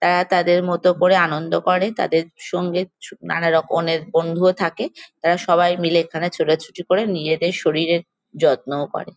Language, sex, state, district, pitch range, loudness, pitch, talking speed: Bengali, female, West Bengal, Jalpaiguri, 165-180 Hz, -19 LUFS, 170 Hz, 150 wpm